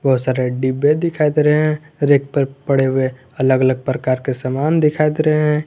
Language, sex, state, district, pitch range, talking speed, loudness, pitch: Hindi, male, Jharkhand, Garhwa, 130-150 Hz, 210 wpm, -17 LUFS, 140 Hz